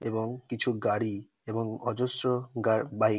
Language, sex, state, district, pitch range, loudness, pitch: Bengali, male, West Bengal, North 24 Parganas, 110-125 Hz, -30 LUFS, 115 Hz